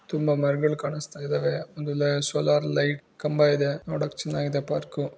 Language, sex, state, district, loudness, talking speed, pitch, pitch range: Kannada, female, Karnataka, Bijapur, -26 LUFS, 140 wpm, 145 Hz, 140-150 Hz